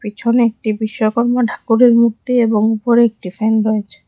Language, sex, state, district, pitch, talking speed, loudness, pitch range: Bengali, female, Tripura, West Tripura, 225 Hz, 145 wpm, -15 LUFS, 215-235 Hz